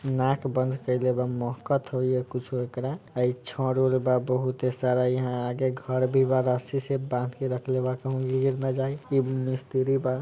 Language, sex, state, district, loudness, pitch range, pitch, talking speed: Bhojpuri, male, Bihar, Sitamarhi, -27 LUFS, 125-130 Hz, 130 Hz, 190 wpm